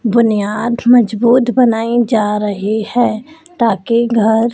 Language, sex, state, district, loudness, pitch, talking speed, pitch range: Hindi, male, Madhya Pradesh, Dhar, -13 LUFS, 230 Hz, 105 wpm, 220-240 Hz